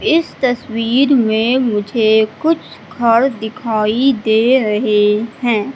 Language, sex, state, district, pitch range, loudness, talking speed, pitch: Hindi, female, Madhya Pradesh, Katni, 220-260 Hz, -15 LUFS, 105 wpm, 230 Hz